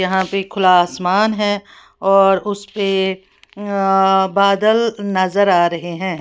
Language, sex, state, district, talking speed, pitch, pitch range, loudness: Hindi, female, Uttar Pradesh, Lalitpur, 125 wpm, 195 Hz, 185-200 Hz, -16 LUFS